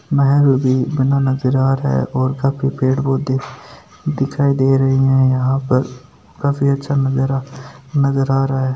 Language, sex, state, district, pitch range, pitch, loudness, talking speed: Marwari, male, Rajasthan, Nagaur, 130-140 Hz, 135 Hz, -17 LUFS, 165 wpm